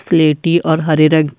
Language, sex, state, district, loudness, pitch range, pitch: Hindi, female, Uttarakhand, Tehri Garhwal, -13 LUFS, 155-165 Hz, 160 Hz